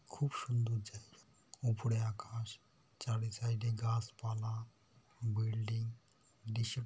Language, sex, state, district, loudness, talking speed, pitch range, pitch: Bengali, male, West Bengal, North 24 Parganas, -39 LUFS, 85 wpm, 110-120 Hz, 115 Hz